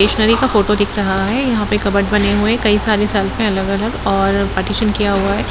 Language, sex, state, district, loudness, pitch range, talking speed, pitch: Hindi, female, Bihar, Gopalganj, -15 LUFS, 200-215 Hz, 250 wpm, 210 Hz